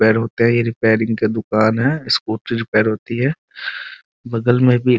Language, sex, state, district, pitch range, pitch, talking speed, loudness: Hindi, male, Bihar, Muzaffarpur, 110-120 Hz, 115 Hz, 190 wpm, -18 LUFS